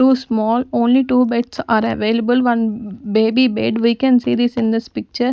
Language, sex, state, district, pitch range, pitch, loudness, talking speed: English, female, Punjab, Kapurthala, 225-250 Hz, 235 Hz, -16 LUFS, 190 wpm